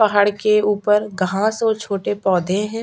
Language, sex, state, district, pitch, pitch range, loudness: Hindi, female, Chhattisgarh, Sukma, 210 Hz, 195-215 Hz, -18 LUFS